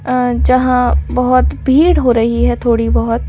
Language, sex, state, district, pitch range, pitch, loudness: Hindi, female, Delhi, New Delhi, 235-255 Hz, 250 Hz, -13 LUFS